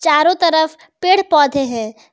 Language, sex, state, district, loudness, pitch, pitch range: Hindi, female, Jharkhand, Garhwa, -15 LUFS, 315 Hz, 275-340 Hz